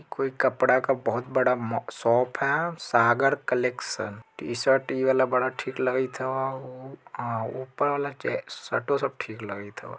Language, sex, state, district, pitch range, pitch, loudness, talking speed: Bajjika, male, Bihar, Vaishali, 120-135 Hz, 130 Hz, -26 LUFS, 160 wpm